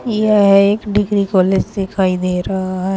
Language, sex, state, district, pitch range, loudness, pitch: Hindi, female, Uttar Pradesh, Saharanpur, 185-205 Hz, -15 LUFS, 195 Hz